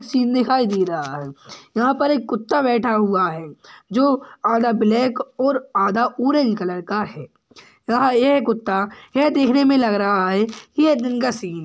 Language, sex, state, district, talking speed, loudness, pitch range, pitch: Hindi, male, Maharashtra, Dhule, 185 wpm, -19 LUFS, 205-260 Hz, 245 Hz